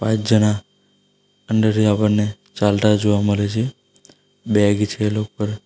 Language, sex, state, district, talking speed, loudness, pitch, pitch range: Gujarati, male, Gujarat, Valsad, 125 wpm, -19 LUFS, 105 Hz, 105-110 Hz